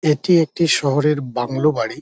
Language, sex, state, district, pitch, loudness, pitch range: Bengali, male, West Bengal, Dakshin Dinajpur, 150 Hz, -18 LUFS, 135-155 Hz